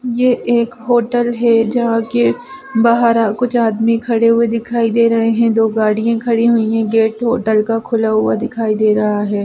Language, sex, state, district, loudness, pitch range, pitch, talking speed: Hindi, female, Bihar, Madhepura, -14 LUFS, 220-235 Hz, 230 Hz, 185 wpm